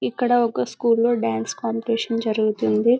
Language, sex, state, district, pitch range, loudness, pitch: Telugu, female, Telangana, Karimnagar, 215-235 Hz, -21 LUFS, 230 Hz